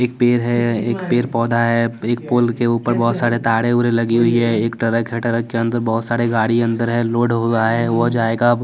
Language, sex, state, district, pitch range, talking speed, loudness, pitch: Hindi, male, Bihar, West Champaran, 115-120 Hz, 230 wpm, -17 LUFS, 115 Hz